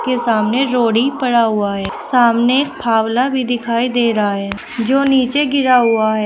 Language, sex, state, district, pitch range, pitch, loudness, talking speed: Hindi, female, Uttar Pradesh, Shamli, 225-255 Hz, 240 Hz, -15 LUFS, 165 wpm